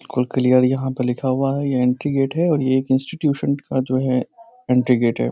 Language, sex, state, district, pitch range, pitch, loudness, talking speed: Hindi, male, Uttar Pradesh, Jyotiba Phule Nagar, 125-140 Hz, 130 Hz, -19 LUFS, 225 wpm